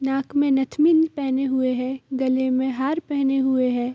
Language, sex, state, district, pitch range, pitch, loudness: Hindi, female, Bihar, East Champaran, 260-280 Hz, 265 Hz, -22 LUFS